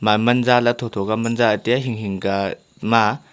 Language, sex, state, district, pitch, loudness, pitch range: Wancho, male, Arunachal Pradesh, Longding, 115 Hz, -19 LUFS, 105-120 Hz